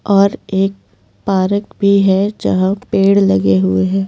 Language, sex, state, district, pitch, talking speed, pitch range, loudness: Hindi, female, Delhi, New Delhi, 195 Hz, 145 wpm, 185-200 Hz, -14 LUFS